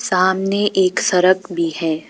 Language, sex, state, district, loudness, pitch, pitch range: Hindi, female, Arunachal Pradesh, Papum Pare, -17 LUFS, 185 Hz, 170-190 Hz